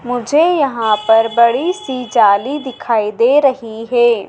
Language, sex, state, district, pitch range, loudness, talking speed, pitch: Hindi, female, Madhya Pradesh, Dhar, 225-270 Hz, -14 LUFS, 140 wpm, 240 Hz